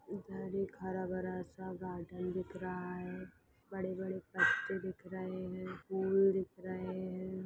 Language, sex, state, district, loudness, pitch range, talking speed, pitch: Hindi, female, Maharashtra, Solapur, -39 LUFS, 185-190 Hz, 145 wpm, 185 Hz